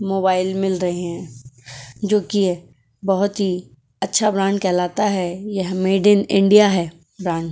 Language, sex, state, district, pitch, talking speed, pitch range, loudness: Hindi, female, Goa, North and South Goa, 185 Hz, 160 wpm, 175-200 Hz, -19 LUFS